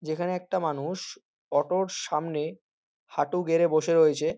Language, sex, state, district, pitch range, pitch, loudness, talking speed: Bengali, male, West Bengal, North 24 Parganas, 155-180 Hz, 165 Hz, -27 LUFS, 135 wpm